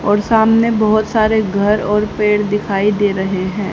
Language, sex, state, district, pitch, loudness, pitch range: Hindi, female, Haryana, Jhajjar, 210 Hz, -15 LUFS, 205-215 Hz